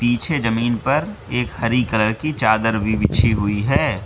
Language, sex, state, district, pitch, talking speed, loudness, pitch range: Hindi, male, Mizoram, Aizawl, 115 Hz, 175 wpm, -19 LUFS, 110-120 Hz